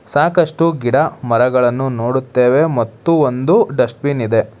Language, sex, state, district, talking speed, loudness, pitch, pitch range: Kannada, male, Karnataka, Bangalore, 115 wpm, -15 LUFS, 130 Hz, 120-155 Hz